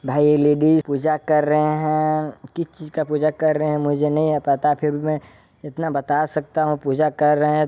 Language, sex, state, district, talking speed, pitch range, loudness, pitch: Hindi, male, Chhattisgarh, Balrampur, 225 wpm, 145-155 Hz, -20 LUFS, 150 Hz